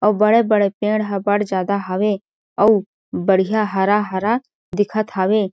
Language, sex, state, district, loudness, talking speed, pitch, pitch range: Chhattisgarhi, female, Chhattisgarh, Jashpur, -18 LUFS, 130 wpm, 205 Hz, 195-215 Hz